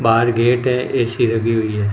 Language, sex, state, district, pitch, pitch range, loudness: Hindi, male, Rajasthan, Bikaner, 115 Hz, 115-120 Hz, -17 LUFS